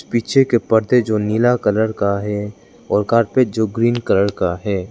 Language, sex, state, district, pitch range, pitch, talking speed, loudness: Hindi, male, Arunachal Pradesh, Lower Dibang Valley, 105-120 Hz, 110 Hz, 185 wpm, -17 LUFS